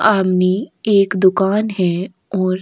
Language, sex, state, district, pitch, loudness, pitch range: Hindi, female, Chhattisgarh, Korba, 190 Hz, -16 LUFS, 185-200 Hz